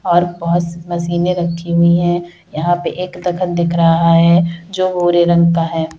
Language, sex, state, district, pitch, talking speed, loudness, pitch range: Hindi, female, Uttar Pradesh, Hamirpur, 170 Hz, 180 wpm, -15 LUFS, 170-175 Hz